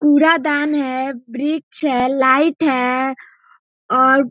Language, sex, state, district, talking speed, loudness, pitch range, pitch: Hindi, female, Bihar, East Champaran, 110 wpm, -17 LUFS, 260-295 Hz, 270 Hz